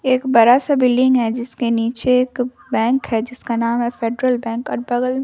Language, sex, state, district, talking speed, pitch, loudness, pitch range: Hindi, female, Bihar, Vaishali, 215 wpm, 245 Hz, -18 LUFS, 230-255 Hz